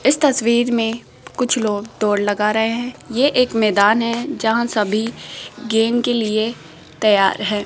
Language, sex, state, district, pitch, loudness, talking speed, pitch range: Hindi, female, Rajasthan, Jaipur, 225 Hz, -18 LUFS, 155 wpm, 210-240 Hz